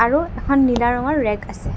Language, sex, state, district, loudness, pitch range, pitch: Assamese, female, Assam, Kamrup Metropolitan, -19 LUFS, 210-280 Hz, 245 Hz